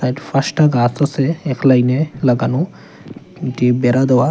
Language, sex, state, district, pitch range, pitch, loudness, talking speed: Bengali, male, Tripura, Unakoti, 125-145 Hz, 135 Hz, -16 LUFS, 155 wpm